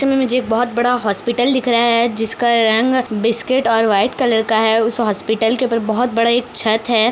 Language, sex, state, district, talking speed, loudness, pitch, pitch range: Hindi, female, Bihar, Kishanganj, 220 wpm, -16 LUFS, 235 Hz, 225-245 Hz